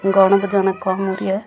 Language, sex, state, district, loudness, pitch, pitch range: Rajasthani, female, Rajasthan, Churu, -17 LUFS, 195 Hz, 190-195 Hz